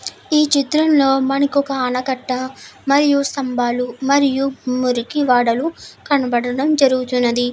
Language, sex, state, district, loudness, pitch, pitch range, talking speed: Telugu, female, Andhra Pradesh, Anantapur, -17 LUFS, 270 Hz, 250-280 Hz, 90 wpm